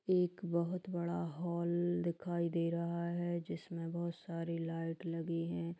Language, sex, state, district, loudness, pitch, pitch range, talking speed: Hindi, female, Bihar, Purnia, -38 LUFS, 170 Hz, 170-175 Hz, 145 wpm